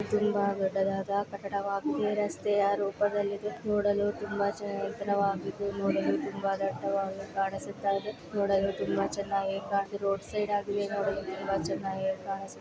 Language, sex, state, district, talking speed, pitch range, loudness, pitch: Kannada, female, Karnataka, Mysore, 90 wpm, 195-205 Hz, -31 LUFS, 200 Hz